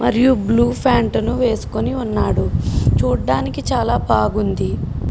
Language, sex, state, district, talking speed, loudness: Telugu, female, Telangana, Karimnagar, 105 wpm, -18 LUFS